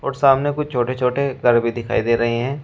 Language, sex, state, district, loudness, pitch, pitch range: Hindi, male, Uttar Pradesh, Shamli, -19 LUFS, 125 Hz, 120-140 Hz